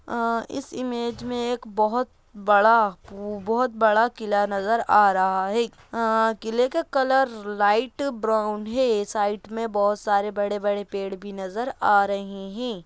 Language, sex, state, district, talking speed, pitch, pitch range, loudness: Hindi, female, Bihar, Gaya, 150 wpm, 220 Hz, 205-235 Hz, -23 LUFS